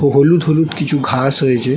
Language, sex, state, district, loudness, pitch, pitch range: Bengali, male, West Bengal, North 24 Parganas, -14 LUFS, 140 Hz, 135-155 Hz